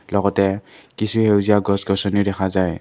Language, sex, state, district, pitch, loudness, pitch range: Assamese, male, Assam, Kamrup Metropolitan, 100 Hz, -19 LUFS, 95-105 Hz